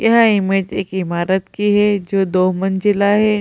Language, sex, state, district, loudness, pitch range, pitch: Hindi, female, Bihar, Gaya, -16 LUFS, 190-205 Hz, 195 Hz